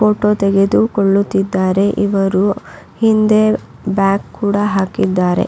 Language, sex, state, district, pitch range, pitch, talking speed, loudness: Kannada, female, Karnataka, Raichur, 195-210 Hz, 200 Hz, 90 wpm, -15 LUFS